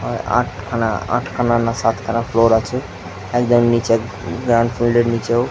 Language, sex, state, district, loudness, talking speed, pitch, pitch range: Bengali, male, West Bengal, Jhargram, -18 LUFS, 165 wpm, 115 Hz, 110-120 Hz